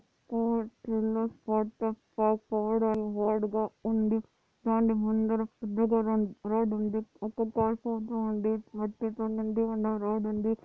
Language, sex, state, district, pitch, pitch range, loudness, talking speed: Telugu, female, Andhra Pradesh, Anantapur, 220 Hz, 215-225 Hz, -30 LUFS, 105 wpm